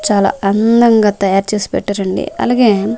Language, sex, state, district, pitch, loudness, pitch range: Telugu, female, Andhra Pradesh, Manyam, 205 Hz, -13 LUFS, 195-225 Hz